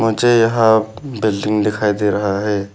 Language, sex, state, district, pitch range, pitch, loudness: Hindi, male, Arunachal Pradesh, Papum Pare, 105-115 Hz, 105 Hz, -16 LUFS